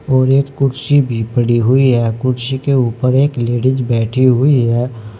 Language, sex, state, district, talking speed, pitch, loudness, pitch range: Hindi, male, Uttar Pradesh, Saharanpur, 175 wpm, 130 Hz, -14 LUFS, 120-135 Hz